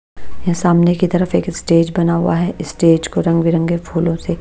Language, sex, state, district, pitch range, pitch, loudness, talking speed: Hindi, female, Bihar, Patna, 165-175 Hz, 170 Hz, -16 LUFS, 205 wpm